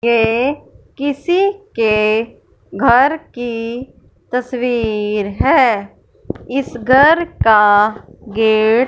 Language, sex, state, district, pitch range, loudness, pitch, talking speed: Hindi, female, Punjab, Fazilka, 220-270 Hz, -15 LUFS, 240 Hz, 80 wpm